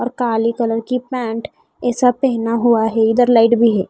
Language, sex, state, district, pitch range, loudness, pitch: Hindi, female, Odisha, Khordha, 225-245 Hz, -16 LUFS, 235 Hz